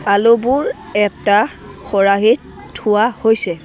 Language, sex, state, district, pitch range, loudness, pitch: Assamese, male, Assam, Sonitpur, 200-225 Hz, -15 LUFS, 210 Hz